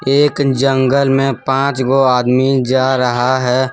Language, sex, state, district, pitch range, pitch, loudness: Hindi, male, Jharkhand, Deoghar, 130-135 Hz, 130 Hz, -14 LUFS